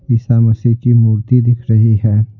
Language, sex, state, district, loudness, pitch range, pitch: Hindi, male, Bihar, Patna, -12 LUFS, 110-120 Hz, 115 Hz